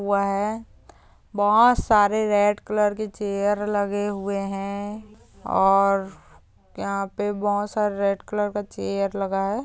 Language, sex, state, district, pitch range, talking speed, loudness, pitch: Hindi, female, Andhra Pradesh, Chittoor, 200-210 Hz, 130 wpm, -23 LUFS, 205 Hz